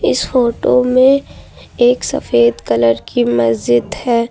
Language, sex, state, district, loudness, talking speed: Hindi, female, Uttar Pradesh, Lucknow, -14 LUFS, 125 wpm